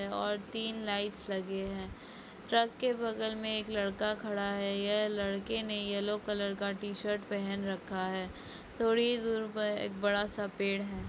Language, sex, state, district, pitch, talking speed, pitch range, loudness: Hindi, female, Jharkhand, Jamtara, 205 Hz, 175 wpm, 200-220 Hz, -34 LUFS